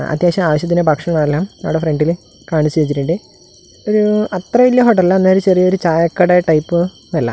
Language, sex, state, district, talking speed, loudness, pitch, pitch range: Malayalam, male, Kerala, Kasaragod, 145 wpm, -14 LUFS, 175 Hz, 160-185 Hz